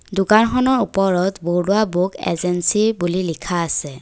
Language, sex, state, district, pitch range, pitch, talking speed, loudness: Assamese, female, Assam, Kamrup Metropolitan, 175-210 Hz, 185 Hz, 120 wpm, -18 LUFS